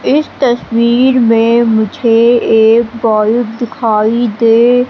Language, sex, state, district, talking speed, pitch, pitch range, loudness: Hindi, female, Madhya Pradesh, Katni, 100 wpm, 230 Hz, 225-240 Hz, -10 LUFS